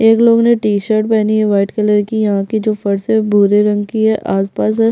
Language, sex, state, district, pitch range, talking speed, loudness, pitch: Hindi, female, Chhattisgarh, Jashpur, 205-220 Hz, 255 wpm, -13 LUFS, 215 Hz